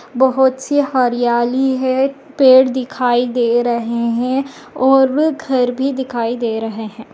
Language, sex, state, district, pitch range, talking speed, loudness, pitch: Hindi, female, Goa, North and South Goa, 240-265 Hz, 135 wpm, -15 LUFS, 255 Hz